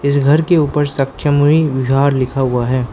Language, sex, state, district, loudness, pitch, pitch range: Hindi, male, Arunachal Pradesh, Lower Dibang Valley, -14 LUFS, 140 Hz, 130-145 Hz